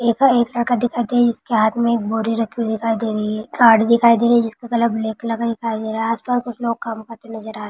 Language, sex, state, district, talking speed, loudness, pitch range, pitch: Hindi, female, Maharashtra, Dhule, 220 wpm, -18 LUFS, 220-235 Hz, 230 Hz